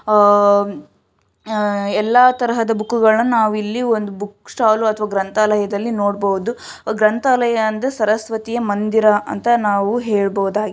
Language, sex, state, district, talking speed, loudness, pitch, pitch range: Kannada, female, Karnataka, Shimoga, 100 wpm, -17 LUFS, 215 Hz, 205-225 Hz